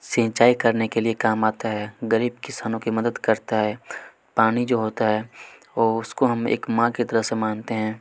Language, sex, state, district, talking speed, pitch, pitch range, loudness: Hindi, male, Chhattisgarh, Kabirdham, 200 wpm, 115 Hz, 110-115 Hz, -22 LUFS